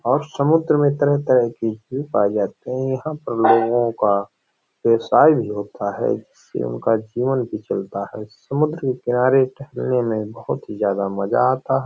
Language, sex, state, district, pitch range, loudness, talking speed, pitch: Hindi, male, Uttar Pradesh, Hamirpur, 105-135 Hz, -20 LUFS, 165 wpm, 120 Hz